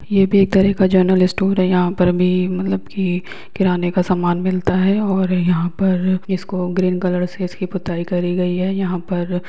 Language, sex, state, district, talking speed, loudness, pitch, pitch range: Hindi, male, Uttar Pradesh, Hamirpur, 210 wpm, -18 LUFS, 185 Hz, 180-190 Hz